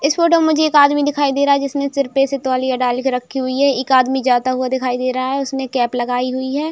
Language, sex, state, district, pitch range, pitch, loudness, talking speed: Hindi, female, Uttar Pradesh, Jalaun, 255-280 Hz, 265 Hz, -16 LUFS, 285 wpm